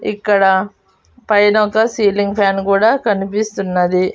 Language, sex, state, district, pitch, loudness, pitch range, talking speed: Telugu, female, Andhra Pradesh, Annamaya, 205 Hz, -14 LUFS, 195-215 Hz, 100 wpm